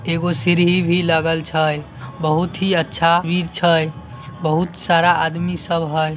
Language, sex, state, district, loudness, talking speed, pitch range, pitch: Hindi, male, Bihar, Samastipur, -18 LUFS, 155 wpm, 155-175 Hz, 165 Hz